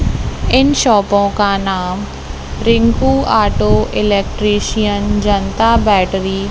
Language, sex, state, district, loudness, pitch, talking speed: Hindi, female, Madhya Pradesh, Katni, -14 LUFS, 200 Hz, 90 wpm